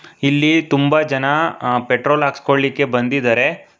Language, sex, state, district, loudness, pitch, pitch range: Kannada, male, Karnataka, Bangalore, -16 LUFS, 140 Hz, 135-145 Hz